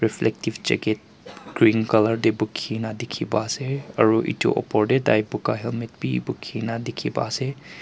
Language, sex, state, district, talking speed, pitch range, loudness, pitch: Nagamese, male, Nagaland, Kohima, 145 wpm, 110-120 Hz, -23 LUFS, 110 Hz